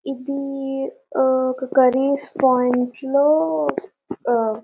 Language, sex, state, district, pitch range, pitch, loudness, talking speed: Telugu, female, Telangana, Nalgonda, 255-280 Hz, 270 Hz, -20 LUFS, 105 wpm